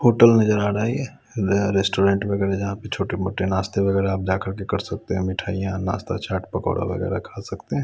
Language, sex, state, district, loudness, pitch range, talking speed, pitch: Hindi, male, Bihar, West Champaran, -22 LUFS, 95-105 Hz, 205 wpm, 100 Hz